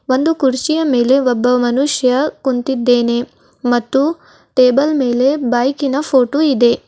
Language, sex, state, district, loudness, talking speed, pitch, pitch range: Kannada, female, Karnataka, Bidar, -15 LUFS, 115 wpm, 260 Hz, 245-280 Hz